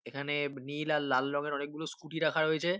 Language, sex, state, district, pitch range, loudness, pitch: Bengali, male, West Bengal, North 24 Parganas, 145-155 Hz, -33 LUFS, 145 Hz